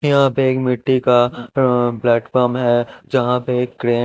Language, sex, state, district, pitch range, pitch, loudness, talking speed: Hindi, male, Punjab, Kapurthala, 120-130 Hz, 125 Hz, -17 LUFS, 190 wpm